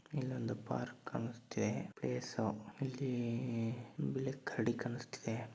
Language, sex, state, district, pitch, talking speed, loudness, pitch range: Kannada, male, Karnataka, Dharwad, 120 Hz, 95 wpm, -41 LUFS, 115-130 Hz